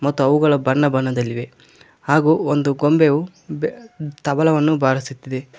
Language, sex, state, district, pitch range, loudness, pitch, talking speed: Kannada, male, Karnataka, Koppal, 130-155 Hz, -18 LUFS, 145 Hz, 85 wpm